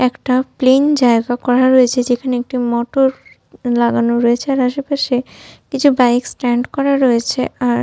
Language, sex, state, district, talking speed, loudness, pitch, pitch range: Bengali, female, West Bengal, Jhargram, 155 wpm, -15 LUFS, 250 Hz, 245-265 Hz